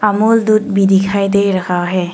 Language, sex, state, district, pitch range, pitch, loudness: Hindi, female, Arunachal Pradesh, Longding, 185-210 Hz, 200 Hz, -13 LUFS